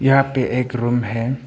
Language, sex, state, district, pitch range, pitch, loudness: Hindi, male, Arunachal Pradesh, Papum Pare, 120-135 Hz, 125 Hz, -19 LUFS